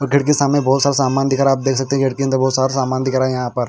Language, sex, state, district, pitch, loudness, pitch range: Hindi, male, Bihar, Patna, 135 Hz, -16 LUFS, 130-140 Hz